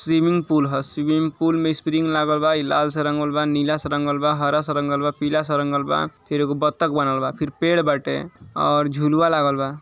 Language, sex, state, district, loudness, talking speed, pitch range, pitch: Bhojpuri, male, Uttar Pradesh, Ghazipur, -21 LUFS, 230 wpm, 145-155 Hz, 150 Hz